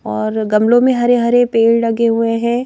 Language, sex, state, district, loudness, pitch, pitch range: Hindi, female, Madhya Pradesh, Bhopal, -13 LUFS, 230 Hz, 225-240 Hz